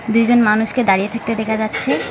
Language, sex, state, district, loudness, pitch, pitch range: Bengali, female, West Bengal, Alipurduar, -15 LUFS, 220 Hz, 215-230 Hz